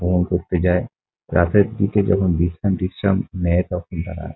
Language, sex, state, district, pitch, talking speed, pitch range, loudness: Bengali, male, West Bengal, Kolkata, 90 Hz, 150 wpm, 85-95 Hz, -20 LUFS